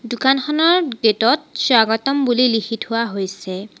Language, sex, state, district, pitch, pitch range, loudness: Assamese, female, Assam, Sonitpur, 235 Hz, 220-270 Hz, -17 LUFS